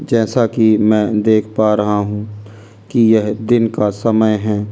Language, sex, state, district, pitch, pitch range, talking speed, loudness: Hindi, male, Delhi, New Delhi, 110 Hz, 105-110 Hz, 165 wpm, -15 LUFS